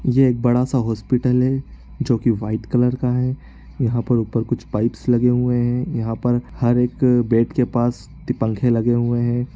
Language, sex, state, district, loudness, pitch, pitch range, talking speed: Hindi, male, Bihar, East Champaran, -19 LUFS, 120 Hz, 120-125 Hz, 180 wpm